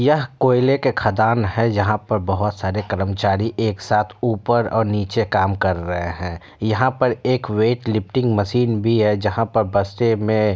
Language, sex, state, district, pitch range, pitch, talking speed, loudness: Hindi, male, Bihar, Kishanganj, 105-120 Hz, 110 Hz, 175 wpm, -19 LUFS